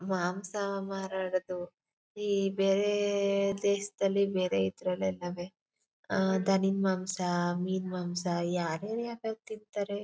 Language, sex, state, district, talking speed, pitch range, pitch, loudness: Kannada, female, Karnataka, Chamarajanagar, 105 wpm, 180-200 Hz, 190 Hz, -31 LUFS